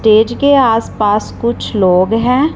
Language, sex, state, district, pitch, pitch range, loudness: Hindi, female, Punjab, Fazilka, 225 Hz, 210-250 Hz, -12 LUFS